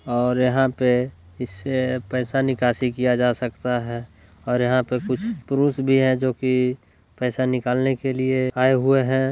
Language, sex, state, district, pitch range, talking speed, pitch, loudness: Hindi, male, Bihar, Lakhisarai, 125-130 Hz, 165 wpm, 125 Hz, -22 LUFS